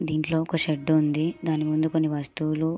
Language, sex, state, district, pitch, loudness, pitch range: Telugu, female, Andhra Pradesh, Srikakulam, 155 Hz, -25 LUFS, 155-160 Hz